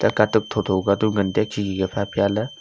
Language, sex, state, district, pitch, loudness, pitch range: Wancho, male, Arunachal Pradesh, Longding, 100 Hz, -21 LUFS, 100-110 Hz